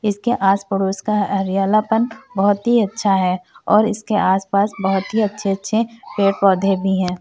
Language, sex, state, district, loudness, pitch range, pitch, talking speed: Hindi, female, Uttar Pradesh, Varanasi, -18 LUFS, 195-215 Hz, 200 Hz, 160 wpm